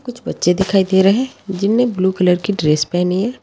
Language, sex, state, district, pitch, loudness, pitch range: Hindi, female, Bihar, Begusarai, 190 Hz, -16 LUFS, 180-225 Hz